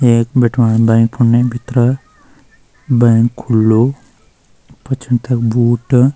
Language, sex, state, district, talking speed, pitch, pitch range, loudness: Garhwali, male, Uttarakhand, Uttarkashi, 95 wpm, 120 Hz, 115-125 Hz, -13 LUFS